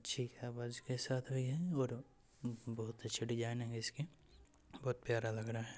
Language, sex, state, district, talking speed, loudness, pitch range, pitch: Hindi, male, Uttar Pradesh, Etah, 195 wpm, -42 LUFS, 115-130 Hz, 120 Hz